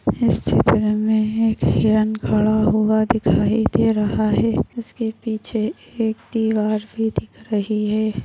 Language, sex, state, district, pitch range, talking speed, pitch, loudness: Hindi, female, Maharashtra, Nagpur, 215-220 Hz, 140 wpm, 215 Hz, -19 LUFS